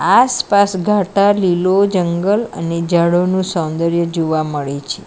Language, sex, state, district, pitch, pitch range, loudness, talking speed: Gujarati, female, Gujarat, Valsad, 180 Hz, 170-200 Hz, -15 LUFS, 120 wpm